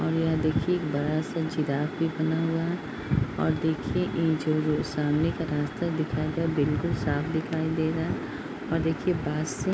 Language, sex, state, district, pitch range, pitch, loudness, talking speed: Hindi, female, Uttar Pradesh, Deoria, 150-165 Hz, 160 Hz, -27 LUFS, 205 wpm